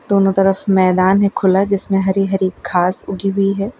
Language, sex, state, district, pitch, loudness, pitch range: Hindi, female, Gujarat, Valsad, 195 Hz, -15 LUFS, 190-195 Hz